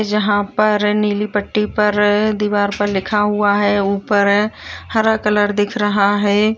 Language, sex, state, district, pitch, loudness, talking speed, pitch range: Hindi, female, Bihar, Kishanganj, 210 Hz, -16 LUFS, 145 wpm, 205-210 Hz